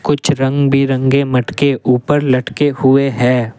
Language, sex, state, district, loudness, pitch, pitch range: Hindi, male, Assam, Kamrup Metropolitan, -14 LUFS, 135 Hz, 125-140 Hz